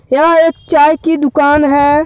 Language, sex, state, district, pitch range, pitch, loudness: Hindi, male, Jharkhand, Deoghar, 290-325 Hz, 295 Hz, -10 LUFS